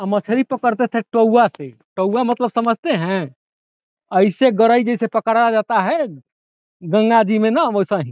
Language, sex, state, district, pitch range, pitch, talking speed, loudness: Bhojpuri, male, Bihar, Saran, 190-235 Hz, 225 Hz, 160 wpm, -17 LUFS